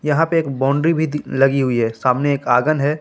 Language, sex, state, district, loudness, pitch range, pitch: Hindi, male, Jharkhand, Palamu, -17 LUFS, 130-155 Hz, 140 Hz